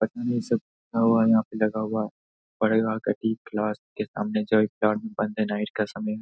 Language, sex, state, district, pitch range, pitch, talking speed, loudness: Hindi, male, Bihar, Saharsa, 105-110 Hz, 110 Hz, 195 wpm, -26 LUFS